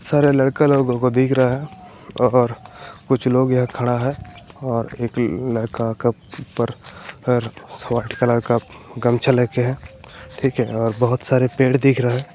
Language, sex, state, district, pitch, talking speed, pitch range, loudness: Hindi, male, Bihar, Vaishali, 125 Hz, 150 wpm, 120-130 Hz, -19 LUFS